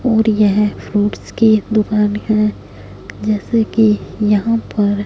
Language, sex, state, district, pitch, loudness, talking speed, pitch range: Hindi, female, Punjab, Fazilka, 210 Hz, -15 LUFS, 120 wpm, 205-220 Hz